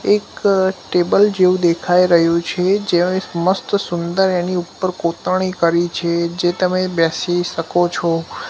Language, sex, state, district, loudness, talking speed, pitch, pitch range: Gujarati, male, Gujarat, Gandhinagar, -17 LUFS, 140 wpm, 180 Hz, 170-185 Hz